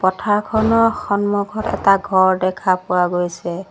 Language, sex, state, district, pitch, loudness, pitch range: Assamese, female, Assam, Sonitpur, 195 Hz, -17 LUFS, 185-210 Hz